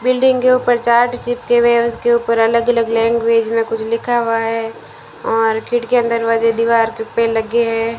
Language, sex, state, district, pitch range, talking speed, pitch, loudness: Hindi, female, Rajasthan, Bikaner, 230-240 Hz, 175 wpm, 230 Hz, -15 LUFS